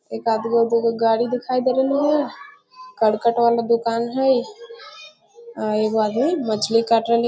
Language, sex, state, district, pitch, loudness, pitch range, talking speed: Maithili, female, Bihar, Muzaffarpur, 235 Hz, -20 LUFS, 230-280 Hz, 175 wpm